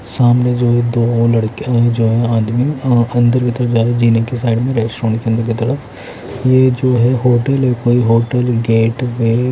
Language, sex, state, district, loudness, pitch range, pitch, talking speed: Hindi, male, Odisha, Khordha, -14 LUFS, 115-125 Hz, 120 Hz, 210 wpm